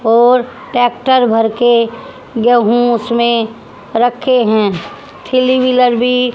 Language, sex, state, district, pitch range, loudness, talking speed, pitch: Hindi, female, Haryana, Jhajjar, 230-250 Hz, -12 LUFS, 105 wpm, 240 Hz